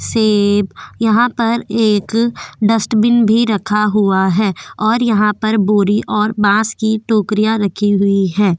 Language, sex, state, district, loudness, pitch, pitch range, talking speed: Hindi, female, Goa, North and South Goa, -14 LUFS, 210 Hz, 205-225 Hz, 140 wpm